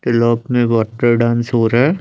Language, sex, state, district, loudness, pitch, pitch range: Hindi, male, Chandigarh, Chandigarh, -15 LUFS, 120 Hz, 115-120 Hz